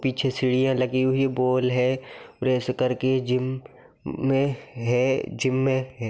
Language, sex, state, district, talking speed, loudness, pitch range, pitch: Magahi, male, Bihar, Gaya, 165 wpm, -24 LUFS, 125-130 Hz, 130 Hz